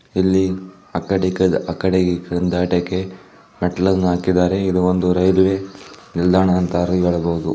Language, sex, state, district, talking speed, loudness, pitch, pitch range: Kannada, male, Karnataka, Chamarajanagar, 110 wpm, -18 LUFS, 90 Hz, 90-95 Hz